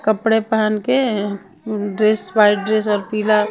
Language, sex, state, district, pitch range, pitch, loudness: Hindi, female, Punjab, Kapurthala, 210-220 Hz, 215 Hz, -18 LUFS